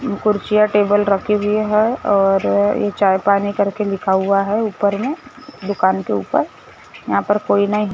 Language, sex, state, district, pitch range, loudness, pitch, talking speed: Hindi, female, Maharashtra, Gondia, 195-210 Hz, -17 LUFS, 205 Hz, 165 wpm